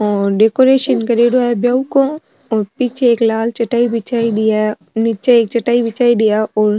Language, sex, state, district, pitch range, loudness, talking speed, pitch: Marwari, female, Rajasthan, Nagaur, 220-245 Hz, -14 LUFS, 175 wpm, 235 Hz